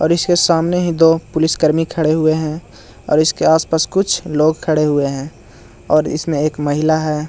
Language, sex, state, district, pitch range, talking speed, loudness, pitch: Hindi, male, Bihar, Jahanabad, 150-160 Hz, 200 wpm, -15 LUFS, 155 Hz